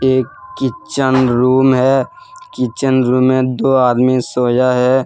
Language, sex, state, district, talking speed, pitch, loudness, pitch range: Hindi, male, Jharkhand, Deoghar, 130 wpm, 130 Hz, -14 LUFS, 125-130 Hz